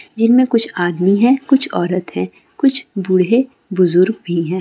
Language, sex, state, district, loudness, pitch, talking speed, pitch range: Hindi, female, Andhra Pradesh, Guntur, -15 LUFS, 195 Hz, 145 wpm, 180-250 Hz